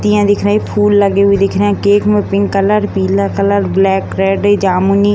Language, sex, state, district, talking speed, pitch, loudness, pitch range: Hindi, female, Bihar, Gopalganj, 235 wpm, 200 Hz, -12 LUFS, 195-205 Hz